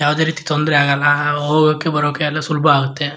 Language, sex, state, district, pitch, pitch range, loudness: Kannada, male, Karnataka, Shimoga, 150 Hz, 145-155 Hz, -16 LUFS